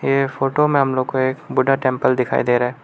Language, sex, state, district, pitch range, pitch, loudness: Hindi, male, Arunachal Pradesh, Lower Dibang Valley, 130-135 Hz, 130 Hz, -18 LUFS